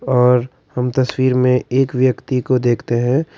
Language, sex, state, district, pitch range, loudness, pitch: Hindi, male, Karnataka, Bangalore, 125-130 Hz, -16 LUFS, 125 Hz